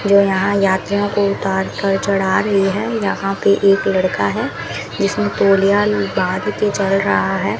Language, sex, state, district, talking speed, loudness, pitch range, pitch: Hindi, female, Rajasthan, Bikaner, 165 wpm, -16 LUFS, 195-200 Hz, 200 Hz